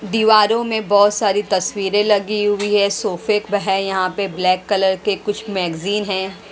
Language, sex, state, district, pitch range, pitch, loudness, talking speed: Hindi, female, Haryana, Rohtak, 195-210 Hz, 205 Hz, -17 LUFS, 165 wpm